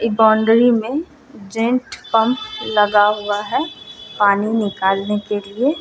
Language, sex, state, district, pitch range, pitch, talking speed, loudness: Angika, female, Bihar, Bhagalpur, 205-245 Hz, 220 Hz, 135 wpm, -17 LUFS